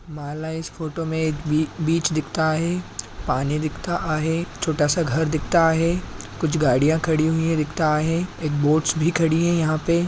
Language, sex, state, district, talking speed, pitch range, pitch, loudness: Marathi, male, Maharashtra, Sindhudurg, 165 wpm, 155-165 Hz, 160 Hz, -22 LUFS